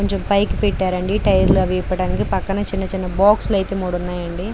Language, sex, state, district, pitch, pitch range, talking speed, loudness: Telugu, female, Andhra Pradesh, Krishna, 190 Hz, 185-200 Hz, 170 wpm, -19 LUFS